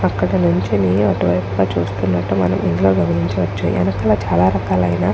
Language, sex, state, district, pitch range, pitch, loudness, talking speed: Telugu, female, Andhra Pradesh, Chittoor, 90-95 Hz, 90 Hz, -17 LUFS, 150 wpm